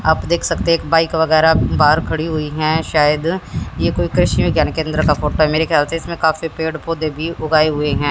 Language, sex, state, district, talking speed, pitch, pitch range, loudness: Hindi, female, Haryana, Jhajjar, 215 wpm, 160 Hz, 155-165 Hz, -16 LUFS